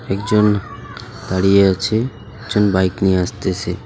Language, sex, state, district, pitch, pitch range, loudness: Bengali, male, West Bengal, Alipurduar, 105 Hz, 95-110 Hz, -17 LUFS